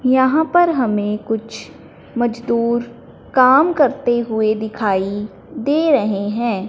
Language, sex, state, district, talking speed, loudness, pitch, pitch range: Hindi, male, Punjab, Fazilka, 110 wpm, -17 LUFS, 235 Hz, 215-265 Hz